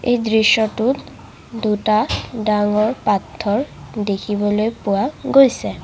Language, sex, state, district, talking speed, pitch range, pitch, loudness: Assamese, female, Assam, Sonitpur, 80 wpm, 210-230 Hz, 215 Hz, -18 LUFS